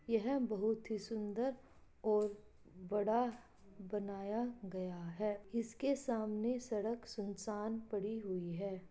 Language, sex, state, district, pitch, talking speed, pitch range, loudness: Hindi, female, Uttar Pradesh, Jalaun, 215 Hz, 110 wpm, 200-230 Hz, -40 LUFS